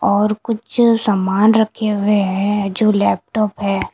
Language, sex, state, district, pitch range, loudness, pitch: Hindi, female, Punjab, Kapurthala, 200-220 Hz, -16 LUFS, 210 Hz